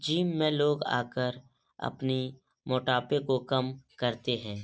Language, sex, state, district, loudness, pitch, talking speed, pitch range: Hindi, male, Uttar Pradesh, Etah, -30 LUFS, 130 Hz, 130 wpm, 125-145 Hz